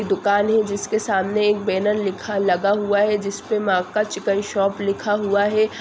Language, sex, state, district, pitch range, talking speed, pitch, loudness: Hindi, female, Bihar, Saran, 200-210 Hz, 195 wpm, 205 Hz, -20 LUFS